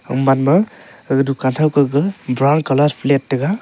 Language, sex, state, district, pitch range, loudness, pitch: Wancho, male, Arunachal Pradesh, Longding, 135-155 Hz, -16 LUFS, 140 Hz